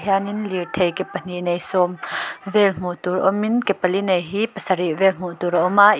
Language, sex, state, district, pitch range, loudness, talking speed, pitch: Mizo, female, Mizoram, Aizawl, 180-200 Hz, -20 LUFS, 210 wpm, 190 Hz